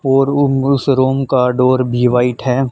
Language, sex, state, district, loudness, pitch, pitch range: Hindi, male, Haryana, Charkhi Dadri, -14 LUFS, 130 Hz, 125-135 Hz